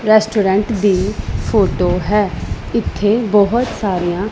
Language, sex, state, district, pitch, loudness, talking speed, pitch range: Punjabi, female, Punjab, Pathankot, 205 Hz, -16 LUFS, 110 wpm, 190-215 Hz